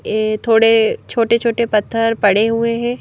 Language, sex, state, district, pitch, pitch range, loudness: Hindi, female, Madhya Pradesh, Bhopal, 225 Hz, 215-235 Hz, -15 LUFS